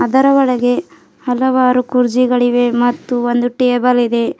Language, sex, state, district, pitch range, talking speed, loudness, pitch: Kannada, female, Karnataka, Bidar, 245-255 Hz, 110 wpm, -14 LUFS, 245 Hz